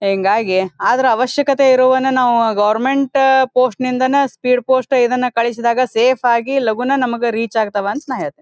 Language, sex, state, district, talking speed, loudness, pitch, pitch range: Kannada, female, Karnataka, Dharwad, 155 wpm, -15 LUFS, 250 Hz, 230-265 Hz